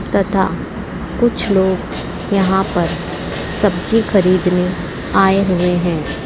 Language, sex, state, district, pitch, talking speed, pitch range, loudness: Hindi, female, Rajasthan, Jaipur, 190 Hz, 95 wpm, 180-200 Hz, -16 LUFS